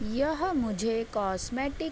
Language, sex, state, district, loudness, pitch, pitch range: Hindi, female, Uttar Pradesh, Budaun, -30 LUFS, 240 Hz, 220-285 Hz